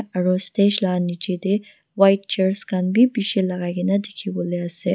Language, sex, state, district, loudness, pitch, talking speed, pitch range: Nagamese, female, Nagaland, Dimapur, -20 LUFS, 190 Hz, 170 wpm, 180-200 Hz